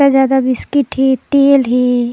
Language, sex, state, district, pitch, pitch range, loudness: Surgujia, female, Chhattisgarh, Sarguja, 265 Hz, 250-275 Hz, -13 LUFS